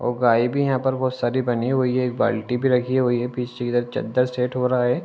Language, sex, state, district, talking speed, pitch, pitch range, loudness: Hindi, male, Uttar Pradesh, Ghazipur, 285 wpm, 125 Hz, 120-130 Hz, -22 LUFS